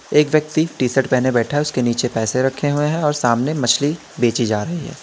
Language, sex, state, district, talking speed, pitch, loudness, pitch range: Hindi, male, Uttar Pradesh, Lalitpur, 240 wpm, 135 Hz, -18 LUFS, 120-150 Hz